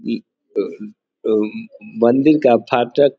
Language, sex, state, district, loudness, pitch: Hindi, male, Bihar, Samastipur, -17 LUFS, 140 Hz